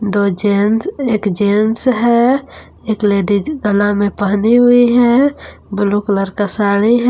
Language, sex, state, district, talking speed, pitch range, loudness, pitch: Hindi, female, Jharkhand, Palamu, 135 wpm, 205-240 Hz, -14 LUFS, 210 Hz